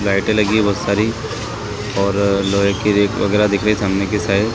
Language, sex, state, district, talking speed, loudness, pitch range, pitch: Hindi, male, Chhattisgarh, Raigarh, 200 wpm, -17 LUFS, 100-105 Hz, 105 Hz